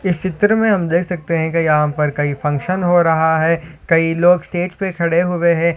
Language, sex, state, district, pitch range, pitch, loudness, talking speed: Hindi, male, Maharashtra, Solapur, 160-180 Hz, 170 Hz, -16 LUFS, 240 wpm